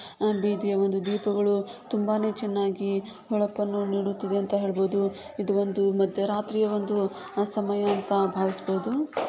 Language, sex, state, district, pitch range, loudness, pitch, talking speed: Kannada, female, Karnataka, Shimoga, 195-210 Hz, -27 LUFS, 200 Hz, 110 wpm